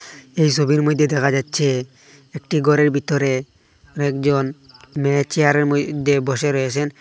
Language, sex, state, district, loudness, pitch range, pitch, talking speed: Bengali, male, Assam, Hailakandi, -19 LUFS, 135-150 Hz, 145 Hz, 120 wpm